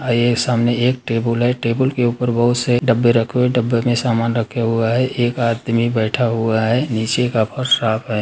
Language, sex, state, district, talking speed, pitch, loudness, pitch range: Hindi, male, Uttar Pradesh, Ghazipur, 220 wpm, 120 Hz, -17 LUFS, 115-125 Hz